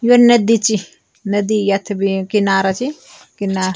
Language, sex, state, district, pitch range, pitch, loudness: Garhwali, male, Uttarakhand, Tehri Garhwal, 195-230 Hz, 205 Hz, -16 LUFS